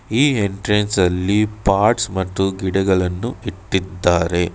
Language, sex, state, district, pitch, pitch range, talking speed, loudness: Kannada, male, Karnataka, Bangalore, 95 Hz, 95-105 Hz, 90 wpm, -18 LUFS